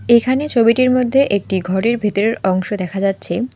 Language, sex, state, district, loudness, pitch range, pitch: Bengali, female, West Bengal, Alipurduar, -16 LUFS, 190-245 Hz, 220 Hz